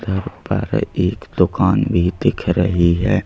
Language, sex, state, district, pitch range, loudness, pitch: Hindi, male, Madhya Pradesh, Bhopal, 85-95 Hz, -18 LUFS, 90 Hz